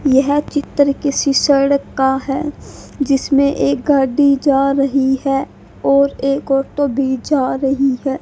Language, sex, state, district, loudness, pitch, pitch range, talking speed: Hindi, female, Haryana, Charkhi Dadri, -16 LUFS, 275 Hz, 270-280 Hz, 140 wpm